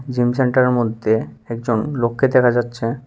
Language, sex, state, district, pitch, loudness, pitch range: Bengali, male, Tripura, West Tripura, 120 Hz, -18 LUFS, 115-130 Hz